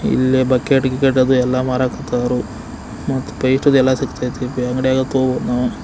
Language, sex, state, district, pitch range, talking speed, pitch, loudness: Kannada, male, Karnataka, Belgaum, 125-130 Hz, 125 wpm, 130 Hz, -17 LUFS